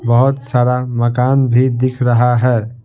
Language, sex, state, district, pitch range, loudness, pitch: Hindi, male, Bihar, Patna, 120-130 Hz, -14 LUFS, 125 Hz